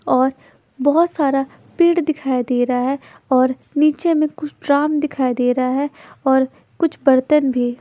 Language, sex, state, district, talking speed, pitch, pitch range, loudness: Hindi, female, Chandigarh, Chandigarh, 160 wpm, 275 Hz, 255-300 Hz, -18 LUFS